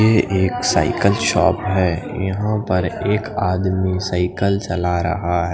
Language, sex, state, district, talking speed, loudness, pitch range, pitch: Hindi, male, Odisha, Khordha, 140 wpm, -19 LUFS, 90-100 Hz, 95 Hz